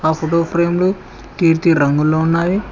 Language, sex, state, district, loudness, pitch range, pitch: Telugu, male, Telangana, Mahabubabad, -15 LUFS, 160-170 Hz, 165 Hz